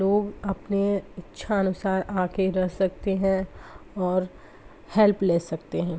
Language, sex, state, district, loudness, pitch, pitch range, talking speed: Hindi, male, Bihar, Saharsa, -25 LUFS, 190 Hz, 185-200 Hz, 130 wpm